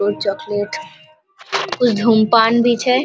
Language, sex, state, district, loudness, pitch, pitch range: Maithili, female, Bihar, Vaishali, -16 LUFS, 230 Hz, 205-250 Hz